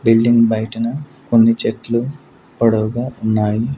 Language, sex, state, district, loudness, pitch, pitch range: Telugu, male, Andhra Pradesh, Sri Satya Sai, -16 LUFS, 115 Hz, 110-120 Hz